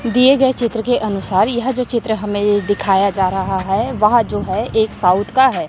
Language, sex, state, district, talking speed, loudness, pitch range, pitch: Hindi, female, Chhattisgarh, Raipur, 210 wpm, -16 LUFS, 200-245 Hz, 215 Hz